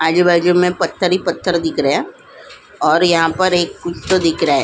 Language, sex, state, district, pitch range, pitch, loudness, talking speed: Hindi, female, Goa, North and South Goa, 165-180 Hz, 175 Hz, -15 LUFS, 205 wpm